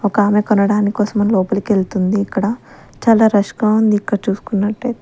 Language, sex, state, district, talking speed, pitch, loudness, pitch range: Telugu, female, Andhra Pradesh, Sri Satya Sai, 155 wpm, 205 Hz, -16 LUFS, 200-215 Hz